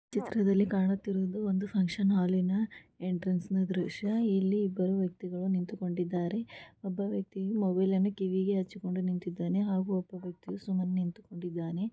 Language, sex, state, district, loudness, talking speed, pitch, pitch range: Kannada, female, Karnataka, Gulbarga, -32 LUFS, 115 wpm, 190 Hz, 185-200 Hz